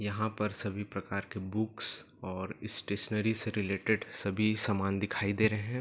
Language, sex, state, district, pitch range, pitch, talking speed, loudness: Hindi, male, Chhattisgarh, Bilaspur, 100-110 Hz, 105 Hz, 175 wpm, -33 LUFS